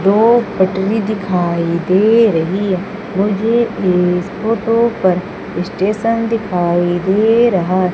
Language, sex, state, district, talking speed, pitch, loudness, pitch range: Hindi, female, Madhya Pradesh, Umaria, 105 wpm, 195 Hz, -15 LUFS, 180-225 Hz